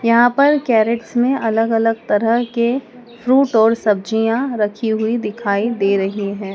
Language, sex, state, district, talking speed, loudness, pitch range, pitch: Hindi, female, Madhya Pradesh, Dhar, 155 wpm, -17 LUFS, 215-240 Hz, 225 Hz